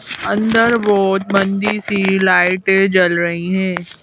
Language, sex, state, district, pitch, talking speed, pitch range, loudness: Hindi, female, Madhya Pradesh, Bhopal, 195 Hz, 120 wpm, 185-205 Hz, -15 LUFS